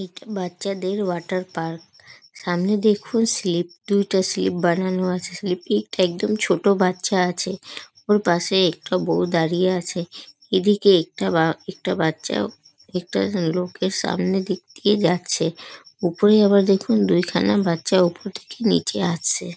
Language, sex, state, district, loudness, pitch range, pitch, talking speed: Bengali, female, West Bengal, North 24 Parganas, -21 LUFS, 175-200 Hz, 185 Hz, 130 wpm